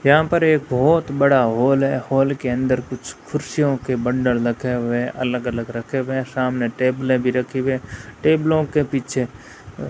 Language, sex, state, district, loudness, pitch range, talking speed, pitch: Hindi, female, Rajasthan, Bikaner, -20 LUFS, 125-140 Hz, 190 wpm, 130 Hz